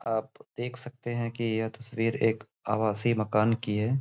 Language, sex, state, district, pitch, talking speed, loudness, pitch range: Hindi, male, Uttar Pradesh, Gorakhpur, 115 Hz, 180 wpm, -30 LUFS, 110-120 Hz